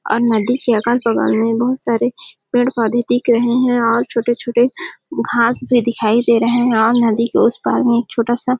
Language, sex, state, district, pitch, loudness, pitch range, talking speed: Hindi, female, Chhattisgarh, Sarguja, 240 Hz, -16 LUFS, 230-245 Hz, 215 wpm